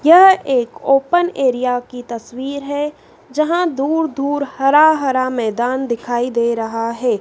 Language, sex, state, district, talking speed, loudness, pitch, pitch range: Hindi, female, Madhya Pradesh, Dhar, 140 wpm, -16 LUFS, 265 Hz, 240-295 Hz